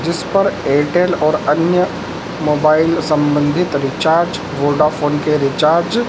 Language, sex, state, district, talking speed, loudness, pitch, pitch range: Hindi, male, Madhya Pradesh, Dhar, 120 wpm, -15 LUFS, 155 Hz, 150-170 Hz